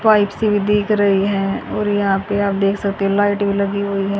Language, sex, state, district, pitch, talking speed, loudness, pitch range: Hindi, female, Haryana, Rohtak, 200 Hz, 260 wpm, -17 LUFS, 200-205 Hz